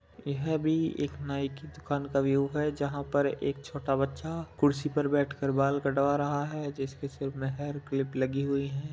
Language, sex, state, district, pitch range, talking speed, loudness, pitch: Hindi, male, Uttar Pradesh, Budaun, 140-145 Hz, 210 wpm, -31 LUFS, 140 Hz